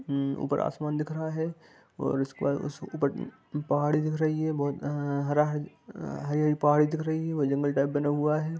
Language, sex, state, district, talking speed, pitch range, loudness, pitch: Hindi, female, Bihar, Darbhanga, 165 wpm, 145-155 Hz, -29 LUFS, 150 Hz